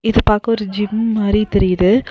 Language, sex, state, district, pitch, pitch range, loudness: Tamil, female, Tamil Nadu, Nilgiris, 210 Hz, 200-225 Hz, -16 LUFS